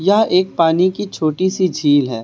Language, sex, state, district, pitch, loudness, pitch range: Hindi, male, Uttar Pradesh, Lucknow, 185 Hz, -16 LUFS, 155-190 Hz